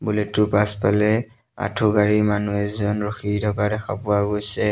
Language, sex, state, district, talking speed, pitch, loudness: Assamese, male, Assam, Sonitpur, 125 wpm, 105 Hz, -21 LUFS